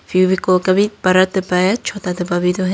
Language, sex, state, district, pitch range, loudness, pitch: Hindi, female, Tripura, Dhalai, 180-190 Hz, -16 LUFS, 185 Hz